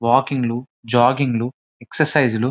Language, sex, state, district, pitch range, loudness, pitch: Telugu, male, Telangana, Nalgonda, 120-135 Hz, -19 LUFS, 125 Hz